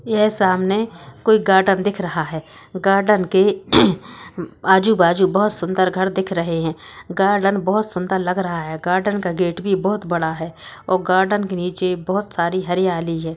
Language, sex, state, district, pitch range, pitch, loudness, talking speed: Hindi, female, Bihar, Gaya, 175-195 Hz, 185 Hz, -18 LUFS, 165 wpm